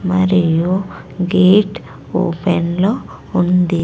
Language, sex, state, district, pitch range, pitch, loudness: Telugu, female, Andhra Pradesh, Sri Satya Sai, 170-185 Hz, 180 Hz, -16 LUFS